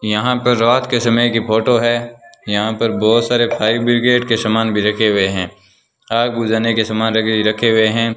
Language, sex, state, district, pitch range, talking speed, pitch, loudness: Hindi, male, Rajasthan, Bikaner, 110-120 Hz, 205 wpm, 115 Hz, -15 LUFS